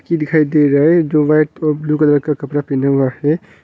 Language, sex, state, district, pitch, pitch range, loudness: Hindi, male, Arunachal Pradesh, Longding, 150 Hz, 145-155 Hz, -14 LUFS